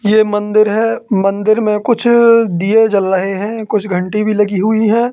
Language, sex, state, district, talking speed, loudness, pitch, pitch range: Hindi, male, Madhya Pradesh, Katni, 185 wpm, -13 LUFS, 215 Hz, 200-225 Hz